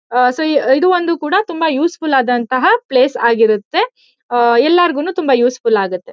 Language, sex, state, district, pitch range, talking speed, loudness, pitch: Kannada, female, Karnataka, Chamarajanagar, 240-335 Hz, 125 wpm, -14 LUFS, 265 Hz